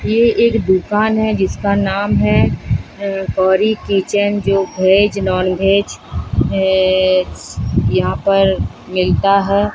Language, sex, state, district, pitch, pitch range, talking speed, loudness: Hindi, female, Odisha, Sambalpur, 195 Hz, 190-205 Hz, 115 wpm, -15 LUFS